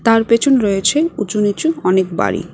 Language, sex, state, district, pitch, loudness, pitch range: Bengali, female, West Bengal, Cooch Behar, 225 Hz, -15 LUFS, 200-270 Hz